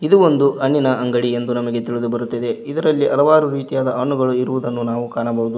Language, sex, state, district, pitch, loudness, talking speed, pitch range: Kannada, male, Karnataka, Koppal, 125 Hz, -18 LUFS, 160 wpm, 120-140 Hz